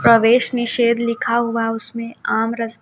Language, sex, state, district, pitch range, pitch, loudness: Hindi, female, Chhattisgarh, Raipur, 230-235 Hz, 230 Hz, -18 LUFS